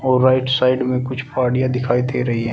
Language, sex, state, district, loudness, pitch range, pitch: Hindi, male, Uttar Pradesh, Shamli, -18 LUFS, 125-130 Hz, 125 Hz